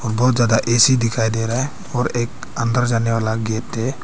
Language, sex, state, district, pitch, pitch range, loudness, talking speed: Hindi, male, Arunachal Pradesh, Papum Pare, 120 Hz, 115-125 Hz, -18 LUFS, 210 wpm